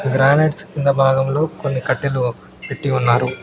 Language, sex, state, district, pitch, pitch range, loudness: Telugu, male, Telangana, Mahabubabad, 135 Hz, 130-140 Hz, -18 LUFS